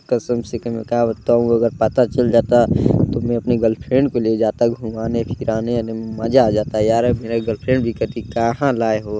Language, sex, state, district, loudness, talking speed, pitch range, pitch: Hindi, male, Chhattisgarh, Balrampur, -18 LUFS, 185 wpm, 110-120 Hz, 115 Hz